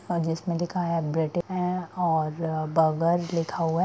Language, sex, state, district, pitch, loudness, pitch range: Hindi, female, Bihar, Darbhanga, 170 Hz, -26 LUFS, 160-175 Hz